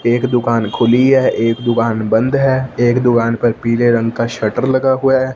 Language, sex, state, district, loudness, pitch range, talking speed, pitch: Hindi, male, Punjab, Fazilka, -14 LUFS, 115-130 Hz, 200 wpm, 120 Hz